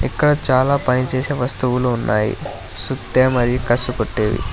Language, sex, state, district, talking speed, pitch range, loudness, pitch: Telugu, male, Telangana, Hyderabad, 130 wpm, 110-130 Hz, -18 LUFS, 125 Hz